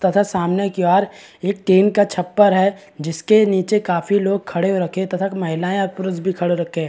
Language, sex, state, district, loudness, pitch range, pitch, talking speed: Hindi, male, Chhattisgarh, Balrampur, -18 LUFS, 180-200 Hz, 190 Hz, 210 wpm